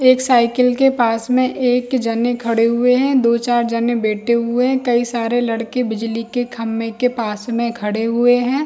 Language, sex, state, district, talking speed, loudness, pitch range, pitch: Hindi, female, Jharkhand, Jamtara, 195 wpm, -17 LUFS, 230-250 Hz, 240 Hz